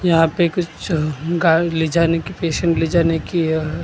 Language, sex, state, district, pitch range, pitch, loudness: Hindi, male, Maharashtra, Gondia, 160-170 Hz, 165 Hz, -18 LUFS